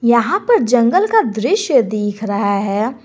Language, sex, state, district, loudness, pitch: Hindi, female, Jharkhand, Garhwa, -15 LUFS, 235 Hz